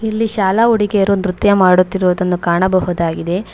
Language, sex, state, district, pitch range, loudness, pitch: Kannada, female, Karnataka, Bangalore, 180-205 Hz, -14 LUFS, 185 Hz